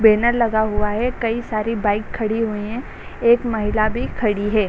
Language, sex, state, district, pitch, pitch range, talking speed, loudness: Hindi, female, Bihar, Sitamarhi, 220 Hz, 215-235 Hz, 215 wpm, -20 LUFS